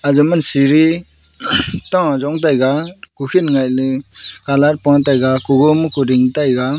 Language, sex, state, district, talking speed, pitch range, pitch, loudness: Wancho, male, Arunachal Pradesh, Longding, 90 wpm, 130-150 Hz, 140 Hz, -14 LUFS